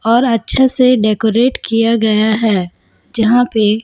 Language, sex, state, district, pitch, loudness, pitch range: Hindi, female, Chhattisgarh, Raipur, 225 Hz, -13 LUFS, 220-245 Hz